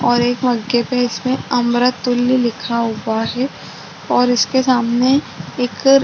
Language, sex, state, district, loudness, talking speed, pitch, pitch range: Hindi, female, Maharashtra, Chandrapur, -17 LUFS, 140 wpm, 245 Hz, 235-255 Hz